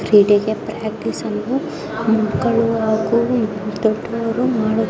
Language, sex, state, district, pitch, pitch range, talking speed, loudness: Kannada, male, Karnataka, Bijapur, 220 Hz, 215-230 Hz, 100 wpm, -19 LUFS